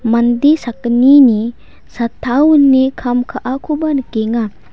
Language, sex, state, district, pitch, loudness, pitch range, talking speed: Garo, female, Meghalaya, West Garo Hills, 250 Hz, -13 LUFS, 235-275 Hz, 90 wpm